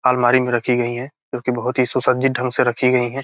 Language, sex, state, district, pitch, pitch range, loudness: Hindi, male, Bihar, Gopalganj, 125 Hz, 120-130 Hz, -19 LUFS